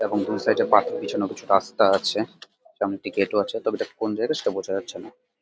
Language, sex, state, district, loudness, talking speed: Bengali, male, West Bengal, Jalpaiguri, -24 LUFS, 265 wpm